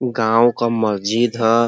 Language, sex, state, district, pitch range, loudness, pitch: Bhojpuri, male, Uttar Pradesh, Ghazipur, 110-120 Hz, -17 LUFS, 115 Hz